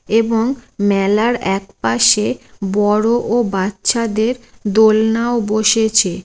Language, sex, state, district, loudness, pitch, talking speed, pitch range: Bengali, female, West Bengal, Jalpaiguri, -15 LUFS, 220 Hz, 75 wpm, 200-230 Hz